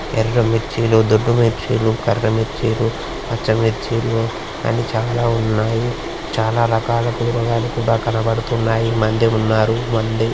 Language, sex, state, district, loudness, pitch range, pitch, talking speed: Telugu, male, Andhra Pradesh, Srikakulam, -18 LUFS, 110-115 Hz, 115 Hz, 110 wpm